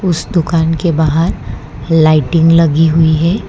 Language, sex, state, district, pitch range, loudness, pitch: Hindi, female, Gujarat, Valsad, 155-165 Hz, -11 LUFS, 160 Hz